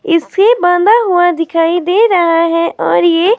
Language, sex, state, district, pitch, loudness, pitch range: Hindi, female, Himachal Pradesh, Shimla, 350 Hz, -11 LUFS, 335-405 Hz